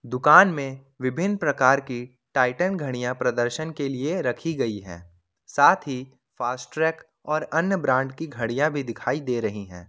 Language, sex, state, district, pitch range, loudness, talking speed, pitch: Hindi, male, Jharkhand, Ranchi, 120-155 Hz, -23 LUFS, 160 wpm, 130 Hz